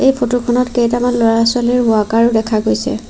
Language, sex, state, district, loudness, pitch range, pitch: Assamese, female, Assam, Sonitpur, -14 LUFS, 225-245 Hz, 235 Hz